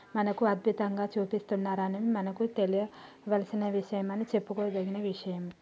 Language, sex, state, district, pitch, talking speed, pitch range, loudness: Telugu, female, Telangana, Nalgonda, 205 Hz, 105 wpm, 195-210 Hz, -32 LUFS